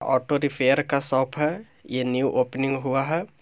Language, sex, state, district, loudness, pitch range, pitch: Hindi, male, Bihar, Gaya, -24 LUFS, 130-145 Hz, 135 Hz